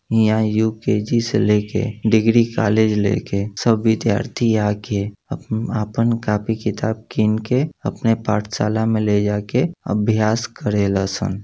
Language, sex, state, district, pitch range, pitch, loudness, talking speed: Bhojpuri, male, Uttar Pradesh, Gorakhpur, 105-115 Hz, 110 Hz, -19 LUFS, 130 wpm